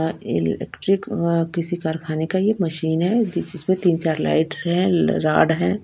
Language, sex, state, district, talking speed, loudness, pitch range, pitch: Hindi, female, Punjab, Kapurthala, 145 wpm, -21 LUFS, 160-185 Hz, 170 Hz